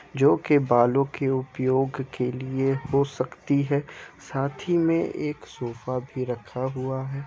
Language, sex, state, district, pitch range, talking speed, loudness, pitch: Hindi, male, Bihar, Kishanganj, 130-140 Hz, 165 wpm, -25 LUFS, 135 Hz